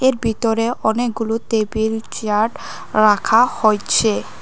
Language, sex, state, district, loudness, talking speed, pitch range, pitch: Bengali, female, Tripura, West Tripura, -18 LUFS, 95 wpm, 215-230 Hz, 220 Hz